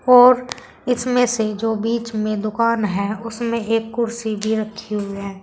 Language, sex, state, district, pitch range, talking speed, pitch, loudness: Hindi, female, Uttar Pradesh, Saharanpur, 215-235 Hz, 165 wpm, 225 Hz, -20 LUFS